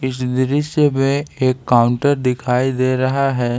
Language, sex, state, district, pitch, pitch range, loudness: Hindi, male, Jharkhand, Ranchi, 130 Hz, 125-140 Hz, -17 LUFS